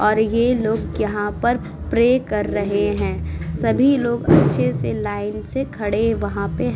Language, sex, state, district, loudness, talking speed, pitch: Hindi, female, Uttar Pradesh, Muzaffarnagar, -20 LUFS, 175 wpm, 210 Hz